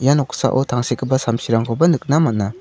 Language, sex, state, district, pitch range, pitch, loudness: Garo, male, Meghalaya, South Garo Hills, 115-140 Hz, 125 Hz, -18 LUFS